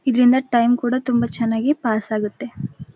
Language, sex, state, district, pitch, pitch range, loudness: Kannada, female, Karnataka, Chamarajanagar, 240 Hz, 225-250 Hz, -19 LUFS